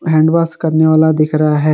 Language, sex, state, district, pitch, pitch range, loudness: Hindi, male, Jharkhand, Garhwa, 155 Hz, 155-160 Hz, -12 LUFS